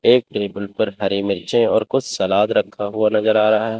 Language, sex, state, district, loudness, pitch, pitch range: Hindi, male, Chandigarh, Chandigarh, -18 LUFS, 105 Hz, 100-110 Hz